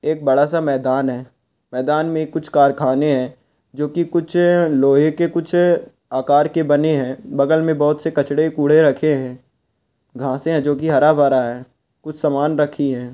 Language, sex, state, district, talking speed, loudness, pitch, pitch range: Hindi, male, Bihar, Bhagalpur, 170 wpm, -17 LUFS, 145 Hz, 130-155 Hz